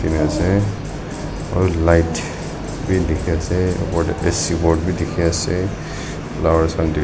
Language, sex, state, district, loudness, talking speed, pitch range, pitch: Nagamese, male, Nagaland, Dimapur, -19 LUFS, 135 wpm, 80-90 Hz, 85 Hz